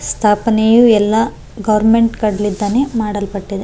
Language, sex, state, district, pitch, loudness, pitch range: Kannada, female, Karnataka, Raichur, 215 Hz, -14 LUFS, 205-230 Hz